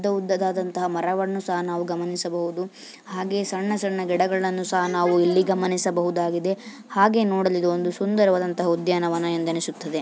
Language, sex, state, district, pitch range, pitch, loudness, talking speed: Kannada, female, Karnataka, Bijapur, 175-190 Hz, 185 Hz, -23 LUFS, 120 wpm